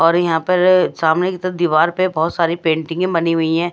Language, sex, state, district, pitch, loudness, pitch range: Hindi, female, Odisha, Malkangiri, 170 Hz, -16 LUFS, 160-180 Hz